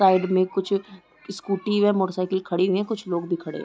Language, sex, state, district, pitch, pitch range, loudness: Hindi, female, Chhattisgarh, Korba, 190 Hz, 185-200 Hz, -24 LUFS